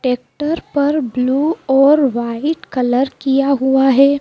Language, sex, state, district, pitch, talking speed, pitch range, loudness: Hindi, female, Madhya Pradesh, Dhar, 270 Hz, 130 wpm, 255-290 Hz, -15 LUFS